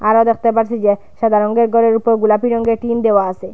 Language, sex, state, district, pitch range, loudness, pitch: Bengali, female, Assam, Hailakandi, 210-230 Hz, -14 LUFS, 225 Hz